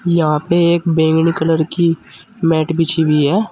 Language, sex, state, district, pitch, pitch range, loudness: Hindi, male, Uttar Pradesh, Saharanpur, 165 Hz, 160-170 Hz, -15 LUFS